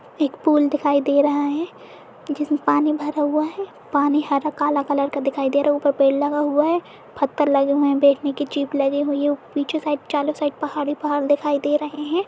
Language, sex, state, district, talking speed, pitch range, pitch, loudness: Hindi, female, Uttar Pradesh, Etah, 225 wpm, 285-300 Hz, 290 Hz, -20 LUFS